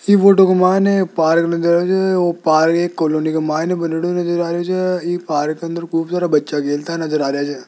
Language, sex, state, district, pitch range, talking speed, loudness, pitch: Hindi, male, Rajasthan, Jaipur, 155-180 Hz, 225 wpm, -16 LUFS, 170 Hz